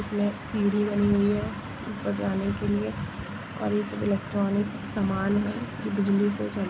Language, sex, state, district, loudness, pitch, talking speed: Hindi, female, Jharkhand, Sahebganj, -27 LUFS, 195 Hz, 145 wpm